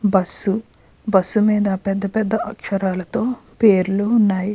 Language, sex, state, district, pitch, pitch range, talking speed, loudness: Telugu, female, Andhra Pradesh, Krishna, 205 Hz, 195-215 Hz, 105 wpm, -19 LUFS